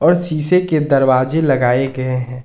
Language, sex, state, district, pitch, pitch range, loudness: Hindi, male, Jharkhand, Ranchi, 135 Hz, 130-160 Hz, -15 LUFS